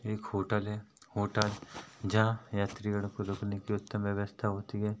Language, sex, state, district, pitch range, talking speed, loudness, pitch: Hindi, male, Chhattisgarh, Rajnandgaon, 100-105 Hz, 155 wpm, -34 LUFS, 105 Hz